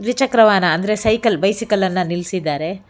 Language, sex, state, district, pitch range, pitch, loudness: Kannada, female, Karnataka, Bangalore, 180-220 Hz, 200 Hz, -17 LUFS